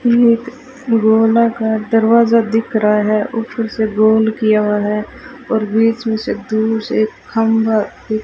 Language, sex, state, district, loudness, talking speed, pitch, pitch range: Hindi, female, Rajasthan, Bikaner, -15 LUFS, 145 wpm, 225 Hz, 215-230 Hz